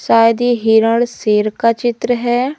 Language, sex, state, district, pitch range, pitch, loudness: Hindi, female, Madhya Pradesh, Umaria, 225-245 Hz, 230 Hz, -14 LUFS